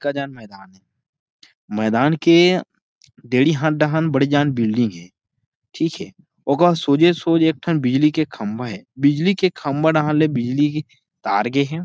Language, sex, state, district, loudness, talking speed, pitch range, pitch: Chhattisgarhi, male, Chhattisgarh, Rajnandgaon, -18 LUFS, 170 wpm, 125-160 Hz, 145 Hz